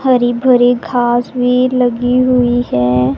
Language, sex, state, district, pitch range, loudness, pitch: Hindi, female, Punjab, Pathankot, 240-250 Hz, -13 LUFS, 245 Hz